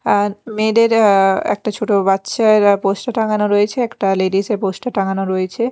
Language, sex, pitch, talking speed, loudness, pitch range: Bengali, female, 205 Hz, 160 wpm, -16 LUFS, 195-220 Hz